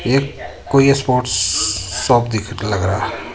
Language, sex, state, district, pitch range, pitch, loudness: Hindi, male, Jharkhand, Ranchi, 100-130 Hz, 115 Hz, -17 LUFS